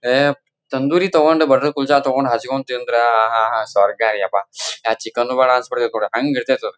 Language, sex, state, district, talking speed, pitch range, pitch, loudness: Kannada, male, Karnataka, Dharwad, 170 wpm, 110-140 Hz, 125 Hz, -17 LUFS